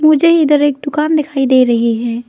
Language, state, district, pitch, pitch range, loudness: Hindi, Arunachal Pradesh, Lower Dibang Valley, 290 Hz, 245-305 Hz, -12 LUFS